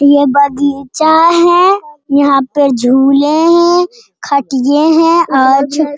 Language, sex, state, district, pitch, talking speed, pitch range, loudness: Hindi, female, Bihar, Jamui, 290 Hz, 110 wpm, 275-335 Hz, -10 LUFS